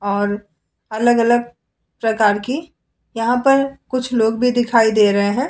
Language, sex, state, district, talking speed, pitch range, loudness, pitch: Hindi, female, Bihar, Vaishali, 155 wpm, 210-250 Hz, -17 LUFS, 230 Hz